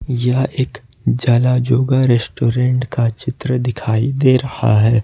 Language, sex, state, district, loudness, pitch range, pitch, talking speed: Hindi, male, Jharkhand, Ranchi, -16 LUFS, 120-130 Hz, 125 Hz, 120 wpm